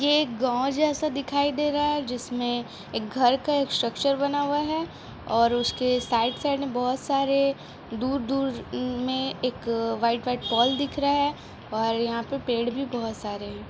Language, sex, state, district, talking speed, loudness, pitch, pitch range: Hindi, female, Bihar, East Champaran, 180 wpm, -26 LUFS, 255 Hz, 235-280 Hz